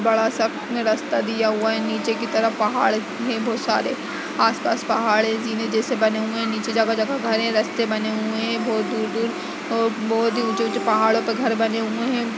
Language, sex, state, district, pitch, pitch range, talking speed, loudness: Hindi, female, Uttar Pradesh, Budaun, 225 Hz, 220-230 Hz, 190 wpm, -22 LUFS